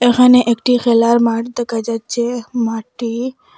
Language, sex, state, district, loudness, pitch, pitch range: Bengali, female, Assam, Hailakandi, -15 LUFS, 235 Hz, 230-245 Hz